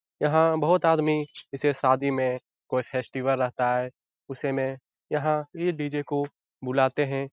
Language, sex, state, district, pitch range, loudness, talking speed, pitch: Hindi, male, Bihar, Jahanabad, 130-150 Hz, -26 LUFS, 145 wpm, 140 Hz